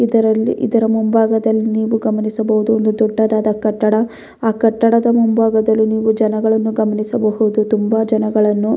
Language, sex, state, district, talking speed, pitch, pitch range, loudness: Kannada, female, Karnataka, Bellary, 125 wpm, 220 Hz, 215-225 Hz, -15 LUFS